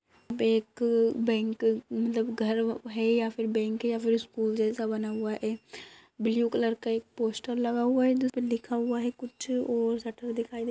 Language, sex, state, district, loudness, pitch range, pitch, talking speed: Hindi, female, Uttar Pradesh, Ghazipur, -29 LUFS, 225-240 Hz, 230 Hz, 185 wpm